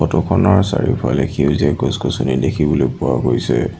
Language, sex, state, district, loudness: Assamese, male, Assam, Sonitpur, -16 LUFS